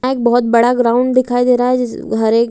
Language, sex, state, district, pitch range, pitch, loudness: Hindi, female, Bihar, Araria, 235-250 Hz, 245 Hz, -14 LUFS